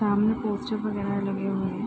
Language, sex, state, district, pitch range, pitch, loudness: Hindi, female, Bihar, Araria, 200-215 Hz, 205 Hz, -27 LUFS